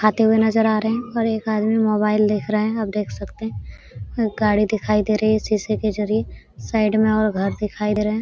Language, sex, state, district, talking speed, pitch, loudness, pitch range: Hindi, female, Jharkhand, Sahebganj, 250 wpm, 215 Hz, -20 LUFS, 210-220 Hz